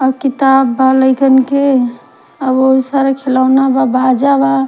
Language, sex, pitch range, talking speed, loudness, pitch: Bhojpuri, female, 260-270 Hz, 155 wpm, -11 LUFS, 265 Hz